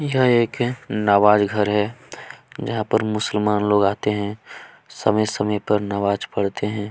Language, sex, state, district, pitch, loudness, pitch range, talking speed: Hindi, male, Chhattisgarh, Kabirdham, 105 Hz, -20 LUFS, 105-110 Hz, 145 wpm